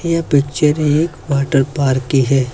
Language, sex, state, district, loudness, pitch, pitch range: Hindi, male, Uttar Pradesh, Lucknow, -15 LUFS, 140 Hz, 135-155 Hz